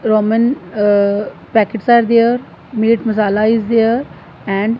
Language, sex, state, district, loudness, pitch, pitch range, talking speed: English, female, Punjab, Fazilka, -14 LUFS, 225 Hz, 210-230 Hz, 125 wpm